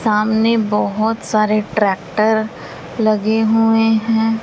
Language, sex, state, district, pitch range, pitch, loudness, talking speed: Hindi, female, Bihar, West Champaran, 215-225 Hz, 220 Hz, -16 LUFS, 95 wpm